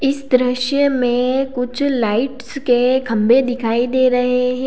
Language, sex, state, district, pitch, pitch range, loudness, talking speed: Hindi, female, Uttar Pradesh, Lalitpur, 250 Hz, 245-265 Hz, -17 LUFS, 140 wpm